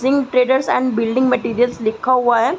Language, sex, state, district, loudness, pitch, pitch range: Hindi, female, Uttar Pradesh, Gorakhpur, -17 LUFS, 250 Hz, 240-260 Hz